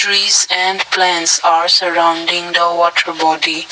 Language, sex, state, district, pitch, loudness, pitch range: English, male, Assam, Kamrup Metropolitan, 170 Hz, -12 LUFS, 170-185 Hz